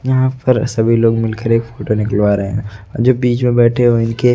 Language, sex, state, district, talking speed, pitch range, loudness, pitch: Hindi, male, Odisha, Nuapada, 205 wpm, 110-125 Hz, -14 LUFS, 115 Hz